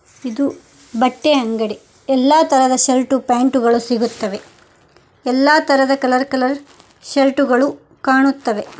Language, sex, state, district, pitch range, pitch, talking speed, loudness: Kannada, female, Karnataka, Koppal, 245-275 Hz, 260 Hz, 110 wpm, -16 LUFS